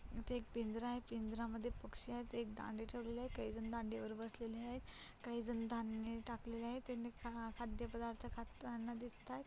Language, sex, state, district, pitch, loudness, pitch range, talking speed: Marathi, female, Maharashtra, Chandrapur, 235 Hz, -47 LUFS, 225-240 Hz, 170 wpm